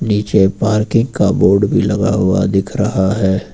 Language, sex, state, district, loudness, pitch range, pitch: Hindi, male, Uttar Pradesh, Lucknow, -14 LUFS, 95-110 Hz, 105 Hz